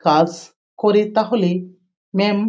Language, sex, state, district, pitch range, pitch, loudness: Bengali, female, West Bengal, Jhargram, 180-210 Hz, 185 Hz, -19 LUFS